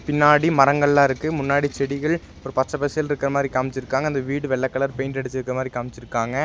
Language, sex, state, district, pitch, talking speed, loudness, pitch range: Tamil, male, Tamil Nadu, Nilgiris, 140 Hz, 165 wpm, -21 LUFS, 130-145 Hz